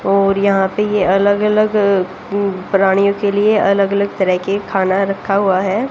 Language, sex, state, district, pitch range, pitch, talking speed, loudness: Hindi, female, Haryana, Jhajjar, 195-200 Hz, 200 Hz, 150 wpm, -15 LUFS